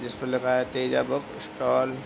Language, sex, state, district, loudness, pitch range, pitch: Hindi, male, Bihar, Gopalganj, -26 LUFS, 125-130 Hz, 130 Hz